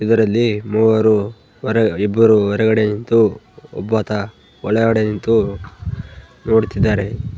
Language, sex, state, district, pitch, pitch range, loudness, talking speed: Kannada, male, Karnataka, Bellary, 110 Hz, 105-115 Hz, -16 LUFS, 90 wpm